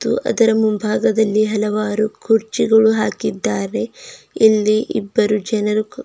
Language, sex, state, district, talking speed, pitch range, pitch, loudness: Kannada, female, Karnataka, Bidar, 80 wpm, 215-220 Hz, 215 Hz, -17 LUFS